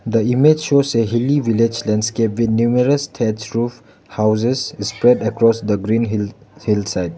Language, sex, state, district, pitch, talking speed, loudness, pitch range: English, male, Arunachal Pradesh, Lower Dibang Valley, 115 Hz, 150 wpm, -17 LUFS, 110-125 Hz